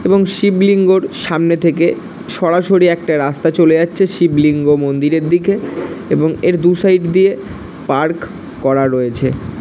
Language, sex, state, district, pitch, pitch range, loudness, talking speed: Bengali, male, West Bengal, Malda, 170 Hz, 150-190 Hz, -13 LUFS, 120 wpm